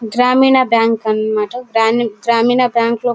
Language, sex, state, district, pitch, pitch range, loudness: Telugu, female, Karnataka, Bellary, 235 Hz, 225-245 Hz, -14 LUFS